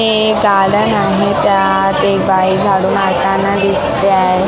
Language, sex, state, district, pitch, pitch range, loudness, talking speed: Marathi, female, Maharashtra, Mumbai Suburban, 195 Hz, 195-200 Hz, -12 LUFS, 145 wpm